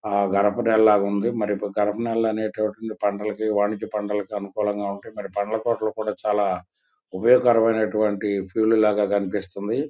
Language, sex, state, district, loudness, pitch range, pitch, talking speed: Telugu, male, Andhra Pradesh, Guntur, -23 LUFS, 100-110 Hz, 105 Hz, 140 wpm